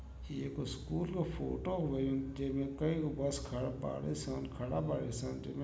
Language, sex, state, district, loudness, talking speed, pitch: Bhojpuri, male, Uttar Pradesh, Gorakhpur, -38 LUFS, 190 wpm, 135 Hz